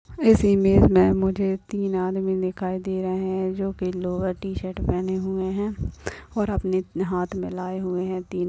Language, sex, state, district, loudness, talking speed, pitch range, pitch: Hindi, female, Maharashtra, Dhule, -24 LUFS, 190 wpm, 185-190 Hz, 185 Hz